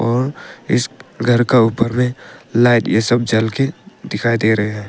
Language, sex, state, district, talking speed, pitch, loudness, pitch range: Hindi, male, Arunachal Pradesh, Papum Pare, 185 wpm, 115 Hz, -16 LUFS, 110-120 Hz